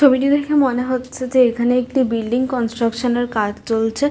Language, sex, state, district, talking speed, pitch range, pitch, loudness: Bengali, female, West Bengal, North 24 Parganas, 175 wpm, 235-260 Hz, 250 Hz, -18 LUFS